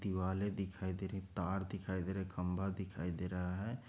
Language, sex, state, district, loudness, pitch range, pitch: Hindi, male, Chhattisgarh, Kabirdham, -41 LUFS, 90-95 Hz, 95 Hz